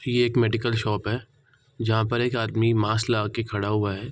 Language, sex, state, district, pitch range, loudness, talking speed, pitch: Hindi, male, Bihar, Gopalganj, 110-120 Hz, -24 LUFS, 220 wpm, 115 Hz